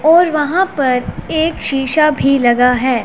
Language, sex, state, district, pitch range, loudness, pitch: Hindi, female, Punjab, Pathankot, 255-320 Hz, -14 LUFS, 280 Hz